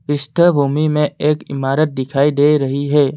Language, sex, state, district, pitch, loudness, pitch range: Hindi, male, Assam, Kamrup Metropolitan, 145 Hz, -16 LUFS, 140-150 Hz